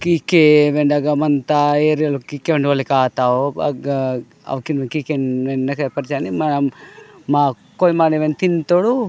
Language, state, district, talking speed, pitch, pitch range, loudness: Gondi, Chhattisgarh, Sukma, 125 wpm, 145 Hz, 135-155 Hz, -17 LUFS